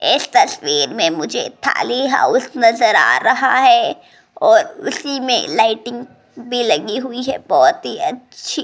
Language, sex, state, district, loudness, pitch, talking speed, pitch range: Hindi, female, Rajasthan, Jaipur, -15 LUFS, 250 Hz, 140 wpm, 230-305 Hz